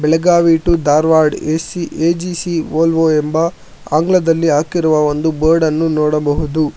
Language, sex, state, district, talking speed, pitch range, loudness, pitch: Kannada, male, Karnataka, Bangalore, 105 wpm, 155-165 Hz, -14 LUFS, 160 Hz